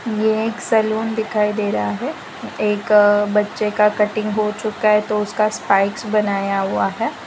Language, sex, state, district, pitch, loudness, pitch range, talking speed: Hindi, female, Gujarat, Valsad, 210 Hz, -18 LUFS, 210-215 Hz, 155 wpm